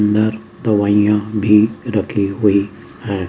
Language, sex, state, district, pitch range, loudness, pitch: Hindi, male, Rajasthan, Jaipur, 100-110 Hz, -16 LUFS, 105 Hz